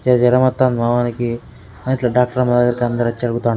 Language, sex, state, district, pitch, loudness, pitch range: Telugu, male, Telangana, Karimnagar, 120 Hz, -17 LUFS, 120-125 Hz